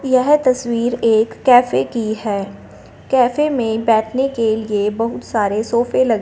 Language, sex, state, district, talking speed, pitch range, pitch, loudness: Hindi, female, Punjab, Fazilka, 145 wpm, 220-255 Hz, 235 Hz, -17 LUFS